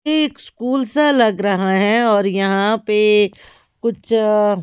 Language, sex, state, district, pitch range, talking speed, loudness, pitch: Hindi, female, Chhattisgarh, Raipur, 200-240 Hz, 155 wpm, -16 LUFS, 215 Hz